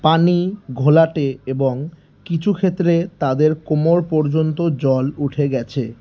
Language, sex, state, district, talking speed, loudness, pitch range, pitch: Bengali, male, West Bengal, Alipurduar, 100 wpm, -18 LUFS, 135-170 Hz, 155 Hz